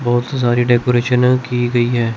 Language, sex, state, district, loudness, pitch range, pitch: Hindi, male, Chandigarh, Chandigarh, -15 LUFS, 120-125 Hz, 120 Hz